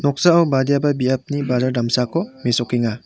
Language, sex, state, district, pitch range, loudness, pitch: Garo, male, Meghalaya, West Garo Hills, 120-145 Hz, -18 LUFS, 130 Hz